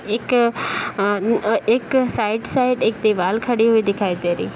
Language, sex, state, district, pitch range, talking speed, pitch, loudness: Hindi, female, Bihar, Saharsa, 205-235 Hz, 185 wpm, 225 Hz, -19 LUFS